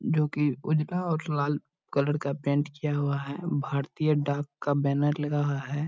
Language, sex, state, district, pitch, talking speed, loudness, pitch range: Hindi, male, Bihar, Purnia, 145 Hz, 205 wpm, -28 LUFS, 140-150 Hz